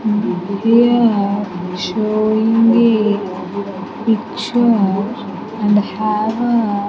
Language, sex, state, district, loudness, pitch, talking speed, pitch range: English, female, Andhra Pradesh, Sri Satya Sai, -16 LUFS, 215 Hz, 70 wpm, 200-225 Hz